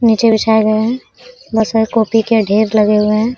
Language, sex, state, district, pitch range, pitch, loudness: Hindi, female, Jharkhand, Sahebganj, 215-230 Hz, 220 Hz, -13 LUFS